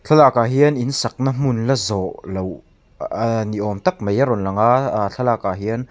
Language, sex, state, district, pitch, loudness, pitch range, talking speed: Mizo, male, Mizoram, Aizawl, 115 Hz, -19 LUFS, 100-130 Hz, 195 wpm